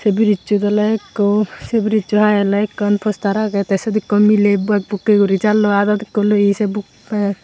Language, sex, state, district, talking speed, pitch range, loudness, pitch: Chakma, female, Tripura, Unakoti, 170 wpm, 205-210 Hz, -16 LUFS, 210 Hz